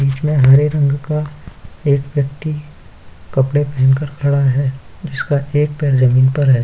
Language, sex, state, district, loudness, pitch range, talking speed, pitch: Hindi, male, Uttar Pradesh, Jyotiba Phule Nagar, -15 LUFS, 130-145 Hz, 160 wpm, 140 Hz